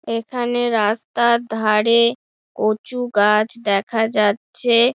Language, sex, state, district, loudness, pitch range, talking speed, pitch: Bengali, female, West Bengal, Dakshin Dinajpur, -18 LUFS, 215-240 Hz, 85 wpm, 230 Hz